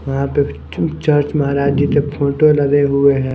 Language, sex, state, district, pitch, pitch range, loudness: Hindi, male, Punjab, Kapurthala, 140 Hz, 140-145 Hz, -15 LUFS